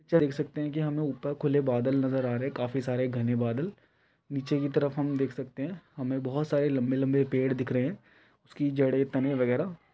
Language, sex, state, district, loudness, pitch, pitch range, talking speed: Hindi, male, Chhattisgarh, Rajnandgaon, -29 LUFS, 135 Hz, 130-145 Hz, 225 wpm